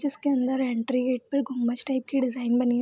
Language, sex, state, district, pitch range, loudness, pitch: Hindi, female, Bihar, Vaishali, 245-270 Hz, -26 LUFS, 255 Hz